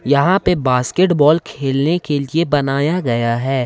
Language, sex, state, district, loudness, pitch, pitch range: Hindi, male, Jharkhand, Ranchi, -16 LUFS, 145 Hz, 135-165 Hz